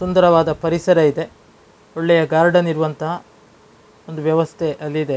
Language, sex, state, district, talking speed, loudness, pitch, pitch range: Kannada, male, Karnataka, Dakshina Kannada, 130 wpm, -17 LUFS, 160 Hz, 155-170 Hz